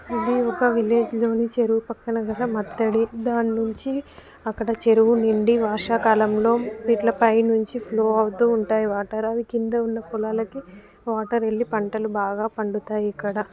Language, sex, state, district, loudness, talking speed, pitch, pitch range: Telugu, female, Telangana, Karimnagar, -22 LUFS, 130 wpm, 225 Hz, 220-235 Hz